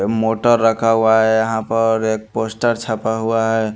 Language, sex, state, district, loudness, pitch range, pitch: Hindi, male, Haryana, Charkhi Dadri, -17 LUFS, 110-115 Hz, 110 Hz